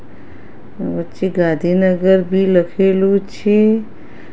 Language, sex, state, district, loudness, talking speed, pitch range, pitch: Gujarati, female, Gujarat, Gandhinagar, -15 LUFS, 70 wpm, 175-195 Hz, 190 Hz